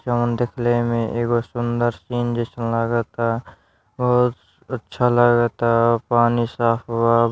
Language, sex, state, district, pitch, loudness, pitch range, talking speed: Bhojpuri, male, Uttar Pradesh, Deoria, 120 Hz, -20 LUFS, 115-120 Hz, 125 wpm